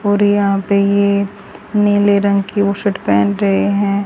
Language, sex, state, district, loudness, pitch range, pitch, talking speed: Hindi, female, Haryana, Rohtak, -15 LUFS, 200-205 Hz, 200 Hz, 175 wpm